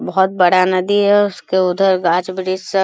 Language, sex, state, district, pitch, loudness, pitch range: Hindi, male, Bihar, Bhagalpur, 185 Hz, -15 LUFS, 185-195 Hz